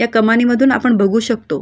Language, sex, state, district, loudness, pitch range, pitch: Marathi, female, Maharashtra, Solapur, -14 LUFS, 220-245 Hz, 235 Hz